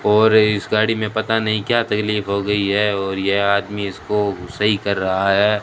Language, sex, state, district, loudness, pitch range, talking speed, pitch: Hindi, male, Rajasthan, Bikaner, -18 LUFS, 100-105 Hz, 205 wpm, 105 Hz